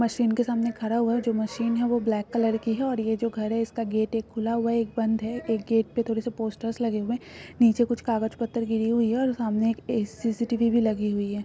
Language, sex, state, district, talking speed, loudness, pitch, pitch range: Marwari, female, Rajasthan, Nagaur, 265 wpm, -26 LUFS, 230 Hz, 220-235 Hz